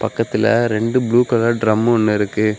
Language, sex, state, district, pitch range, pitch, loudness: Tamil, male, Tamil Nadu, Kanyakumari, 110-120 Hz, 115 Hz, -16 LUFS